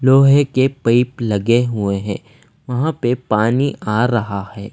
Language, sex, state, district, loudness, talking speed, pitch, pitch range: Hindi, male, Himachal Pradesh, Shimla, -17 LUFS, 150 wpm, 120 Hz, 105-130 Hz